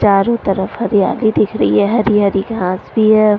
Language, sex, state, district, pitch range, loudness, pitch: Hindi, female, Delhi, New Delhi, 195-215 Hz, -14 LUFS, 205 Hz